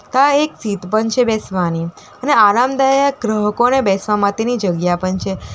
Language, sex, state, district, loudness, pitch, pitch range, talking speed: Gujarati, female, Gujarat, Valsad, -16 LUFS, 215 Hz, 195-250 Hz, 150 wpm